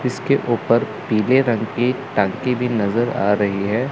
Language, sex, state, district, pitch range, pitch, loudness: Hindi, male, Chandigarh, Chandigarh, 105-125 Hz, 120 Hz, -19 LUFS